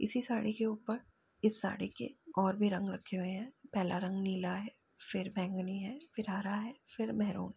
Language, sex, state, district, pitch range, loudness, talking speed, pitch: Hindi, female, Uttar Pradesh, Jalaun, 190-225 Hz, -37 LUFS, 205 wpm, 205 Hz